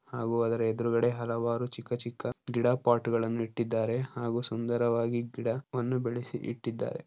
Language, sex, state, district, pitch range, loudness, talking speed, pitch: Kannada, male, Karnataka, Dharwad, 115-120 Hz, -31 LUFS, 120 wpm, 120 Hz